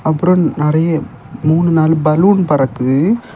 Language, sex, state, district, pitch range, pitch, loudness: Tamil, male, Tamil Nadu, Kanyakumari, 150-175 Hz, 160 Hz, -13 LUFS